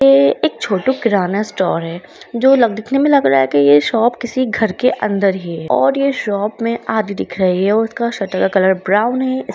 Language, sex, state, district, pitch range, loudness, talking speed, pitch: Hindi, female, Bihar, Lakhisarai, 190-240 Hz, -15 LUFS, 235 wpm, 210 Hz